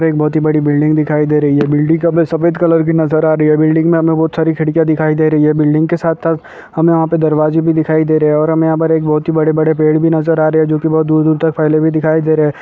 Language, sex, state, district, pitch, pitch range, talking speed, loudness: Hindi, male, Chhattisgarh, Kabirdham, 155 Hz, 155-160 Hz, 300 wpm, -12 LUFS